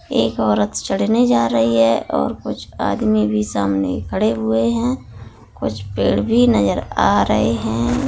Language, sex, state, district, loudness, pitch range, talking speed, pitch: Hindi, female, Bihar, Darbhanga, -18 LUFS, 105-115 Hz, 155 wpm, 110 Hz